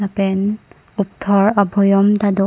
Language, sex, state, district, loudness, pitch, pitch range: Karbi, female, Assam, Karbi Anglong, -16 LUFS, 200 Hz, 195-205 Hz